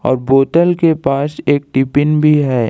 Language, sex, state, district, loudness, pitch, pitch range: Hindi, male, Jharkhand, Ranchi, -13 LUFS, 145 Hz, 135-150 Hz